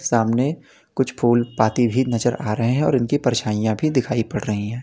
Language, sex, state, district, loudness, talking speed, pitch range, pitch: Hindi, male, Uttar Pradesh, Lalitpur, -20 LUFS, 210 wpm, 110-130 Hz, 120 Hz